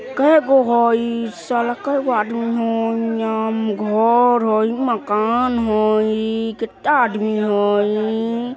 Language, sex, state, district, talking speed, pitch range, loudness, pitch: Bajjika, female, Bihar, Vaishali, 70 wpm, 215-240 Hz, -18 LUFS, 225 Hz